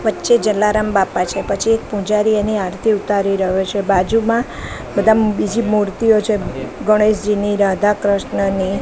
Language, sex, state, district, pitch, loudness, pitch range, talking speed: Gujarati, female, Gujarat, Gandhinagar, 210 Hz, -16 LUFS, 200-215 Hz, 135 wpm